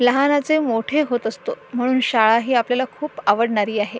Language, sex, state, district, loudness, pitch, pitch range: Marathi, female, Maharashtra, Sindhudurg, -19 LUFS, 245 Hz, 230-290 Hz